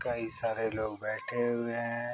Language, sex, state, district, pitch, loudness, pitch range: Hindi, male, Uttar Pradesh, Varanasi, 115 Hz, -33 LUFS, 110-120 Hz